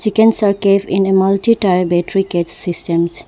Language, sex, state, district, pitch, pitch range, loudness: English, female, Arunachal Pradesh, Lower Dibang Valley, 195 Hz, 175-200 Hz, -14 LUFS